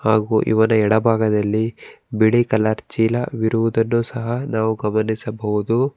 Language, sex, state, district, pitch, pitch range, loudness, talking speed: Kannada, male, Karnataka, Bangalore, 110 Hz, 110-115 Hz, -19 LUFS, 110 wpm